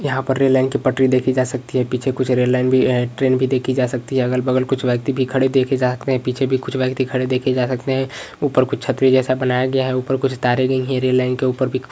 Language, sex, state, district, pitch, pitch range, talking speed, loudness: Hindi, male, Uttarakhand, Uttarkashi, 130 Hz, 125-130 Hz, 300 wpm, -18 LUFS